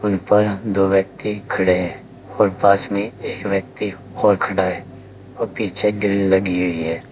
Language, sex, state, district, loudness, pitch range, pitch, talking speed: Hindi, male, Uttar Pradesh, Saharanpur, -19 LUFS, 95-105 Hz, 100 Hz, 160 wpm